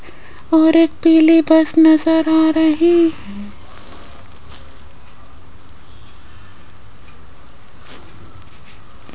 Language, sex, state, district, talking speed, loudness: Hindi, female, Rajasthan, Jaipur, 50 wpm, -13 LUFS